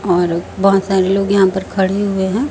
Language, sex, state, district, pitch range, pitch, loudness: Hindi, female, Chhattisgarh, Raipur, 190-195 Hz, 195 Hz, -15 LUFS